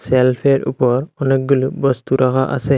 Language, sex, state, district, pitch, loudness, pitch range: Bengali, male, Assam, Hailakandi, 130 Hz, -16 LUFS, 130-135 Hz